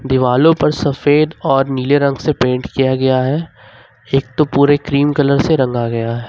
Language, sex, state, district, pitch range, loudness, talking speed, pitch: Hindi, male, Jharkhand, Ranchi, 125-145 Hz, -14 LUFS, 190 wpm, 135 Hz